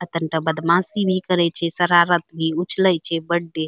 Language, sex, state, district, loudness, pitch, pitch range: Angika, female, Bihar, Bhagalpur, -19 LUFS, 170 Hz, 165-180 Hz